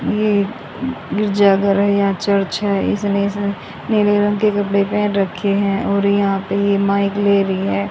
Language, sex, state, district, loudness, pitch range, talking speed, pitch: Hindi, female, Haryana, Rohtak, -17 LUFS, 200-205 Hz, 175 wpm, 200 Hz